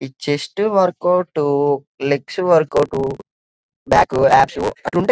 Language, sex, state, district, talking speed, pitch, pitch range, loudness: Telugu, male, Telangana, Karimnagar, 105 wpm, 150 Hz, 140-180 Hz, -17 LUFS